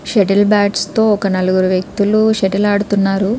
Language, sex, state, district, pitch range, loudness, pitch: Telugu, female, Andhra Pradesh, Krishna, 195-210 Hz, -14 LUFS, 200 Hz